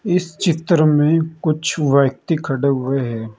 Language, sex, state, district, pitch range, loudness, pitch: Hindi, male, Uttar Pradesh, Saharanpur, 135-165 Hz, -17 LUFS, 155 Hz